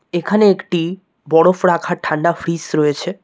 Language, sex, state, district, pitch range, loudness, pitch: Bengali, male, West Bengal, Cooch Behar, 165-185 Hz, -16 LUFS, 170 Hz